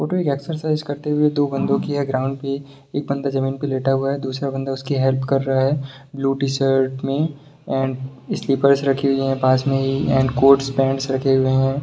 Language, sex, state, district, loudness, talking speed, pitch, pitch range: Hindi, male, Bihar, Sitamarhi, -20 LUFS, 220 wpm, 135 Hz, 135-140 Hz